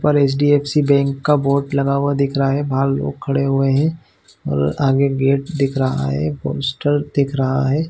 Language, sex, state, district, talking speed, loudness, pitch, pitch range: Hindi, male, Chhattisgarh, Bilaspur, 190 wpm, -18 LUFS, 140 Hz, 130-145 Hz